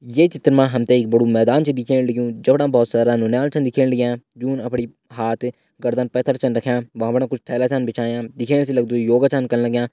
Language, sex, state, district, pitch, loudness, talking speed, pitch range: Hindi, male, Uttarakhand, Uttarkashi, 125 Hz, -19 LUFS, 240 wpm, 120-130 Hz